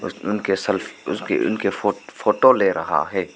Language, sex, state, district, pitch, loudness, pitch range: Hindi, male, Arunachal Pradesh, Papum Pare, 100 Hz, -21 LUFS, 100-105 Hz